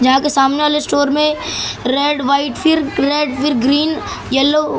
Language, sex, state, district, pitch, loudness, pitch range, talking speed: Hindi, male, Maharashtra, Mumbai Suburban, 285 Hz, -15 LUFS, 270-300 Hz, 175 wpm